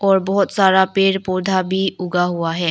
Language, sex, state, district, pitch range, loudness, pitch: Hindi, female, Arunachal Pradesh, Lower Dibang Valley, 180-195 Hz, -17 LUFS, 190 Hz